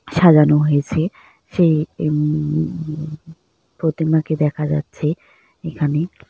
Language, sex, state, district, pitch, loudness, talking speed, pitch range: Bengali, female, West Bengal, Jalpaiguri, 155 Hz, -18 LUFS, 85 wpm, 150-160 Hz